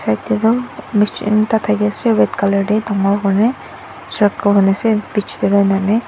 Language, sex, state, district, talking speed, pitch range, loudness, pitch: Nagamese, female, Nagaland, Dimapur, 140 wpm, 200-220 Hz, -15 LUFS, 210 Hz